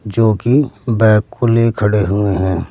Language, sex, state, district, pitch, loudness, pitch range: Hindi, male, Uttar Pradesh, Saharanpur, 110 Hz, -14 LUFS, 105-115 Hz